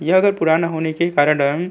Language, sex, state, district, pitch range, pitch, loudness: Hindi, male, Uttarakhand, Tehri Garhwal, 155-170 Hz, 160 Hz, -17 LUFS